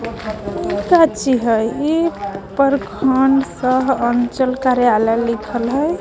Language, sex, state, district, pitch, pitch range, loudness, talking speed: Magahi, female, Jharkhand, Palamu, 250 Hz, 230-270 Hz, -17 LUFS, 110 wpm